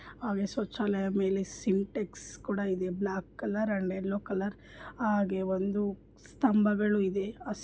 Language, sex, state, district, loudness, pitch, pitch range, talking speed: Kannada, female, Karnataka, Bijapur, -31 LUFS, 200 Hz, 195-210 Hz, 120 wpm